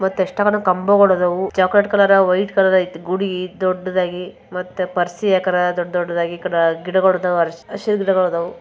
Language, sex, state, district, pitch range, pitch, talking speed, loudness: Kannada, male, Karnataka, Bijapur, 180-195 Hz, 185 Hz, 155 wpm, -17 LUFS